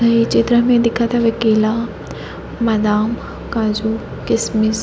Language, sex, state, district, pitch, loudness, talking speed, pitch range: Chhattisgarhi, female, Chhattisgarh, Raigarh, 225 Hz, -17 LUFS, 110 wpm, 220-235 Hz